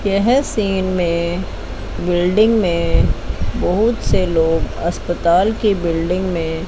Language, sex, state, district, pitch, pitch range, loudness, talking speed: Hindi, female, Chandigarh, Chandigarh, 175 Hz, 170-200 Hz, -17 LUFS, 110 wpm